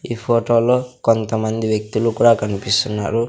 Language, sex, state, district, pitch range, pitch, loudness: Telugu, male, Andhra Pradesh, Sri Satya Sai, 110-120 Hz, 115 Hz, -18 LUFS